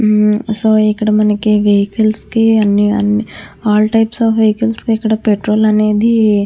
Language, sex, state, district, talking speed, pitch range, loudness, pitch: Telugu, female, Andhra Pradesh, Krishna, 130 wpm, 210-220 Hz, -12 LUFS, 215 Hz